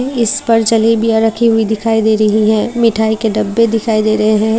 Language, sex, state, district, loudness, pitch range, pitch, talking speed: Hindi, female, Tripura, Unakoti, -12 LUFS, 215-230 Hz, 225 Hz, 210 wpm